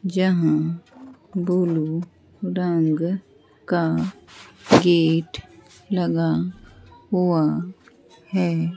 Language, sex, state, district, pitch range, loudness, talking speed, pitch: Hindi, female, Bihar, Katihar, 155-180 Hz, -22 LUFS, 55 wpm, 170 Hz